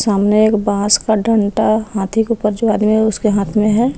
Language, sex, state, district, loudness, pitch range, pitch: Hindi, female, Jharkhand, Palamu, -15 LUFS, 205-220 Hz, 215 Hz